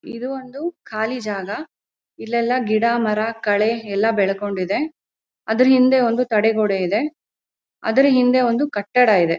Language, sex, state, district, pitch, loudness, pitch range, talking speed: Kannada, female, Karnataka, Mysore, 235 Hz, -19 LUFS, 210-255 Hz, 130 wpm